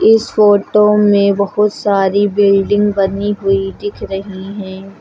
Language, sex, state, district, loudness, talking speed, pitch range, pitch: Hindi, female, Uttar Pradesh, Lucknow, -13 LUFS, 130 wpm, 195-205 Hz, 200 Hz